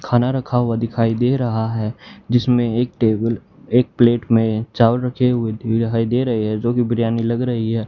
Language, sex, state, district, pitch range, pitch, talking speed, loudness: Hindi, male, Haryana, Charkhi Dadri, 115-125 Hz, 115 Hz, 200 wpm, -18 LUFS